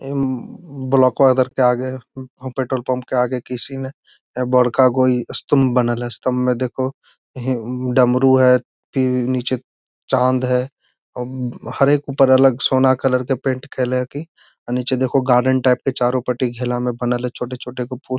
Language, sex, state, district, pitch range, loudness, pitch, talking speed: Magahi, male, Bihar, Gaya, 125-130 Hz, -18 LUFS, 130 Hz, 170 wpm